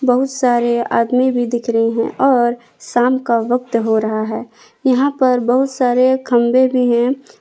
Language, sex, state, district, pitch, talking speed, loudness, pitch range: Hindi, female, Jharkhand, Palamu, 245 Hz, 170 wpm, -15 LUFS, 235-260 Hz